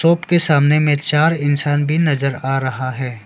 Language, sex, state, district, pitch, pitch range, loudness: Hindi, male, Arunachal Pradesh, Lower Dibang Valley, 145 Hz, 135-155 Hz, -16 LUFS